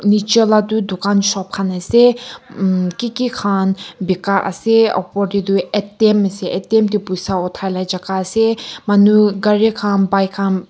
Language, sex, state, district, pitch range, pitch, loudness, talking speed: Nagamese, female, Nagaland, Kohima, 190-215 Hz, 200 Hz, -16 LUFS, 155 wpm